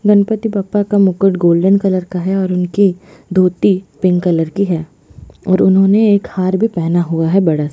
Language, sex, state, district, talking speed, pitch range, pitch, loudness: Hindi, female, Chhattisgarh, Bastar, 195 wpm, 175-200 Hz, 190 Hz, -14 LUFS